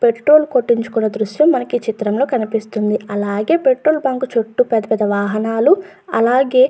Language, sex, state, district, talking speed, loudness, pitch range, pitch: Telugu, female, Andhra Pradesh, Guntur, 145 wpm, -16 LUFS, 215-260 Hz, 230 Hz